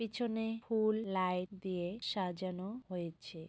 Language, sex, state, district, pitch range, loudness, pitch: Bengali, female, West Bengal, North 24 Parganas, 180-220 Hz, -38 LUFS, 190 Hz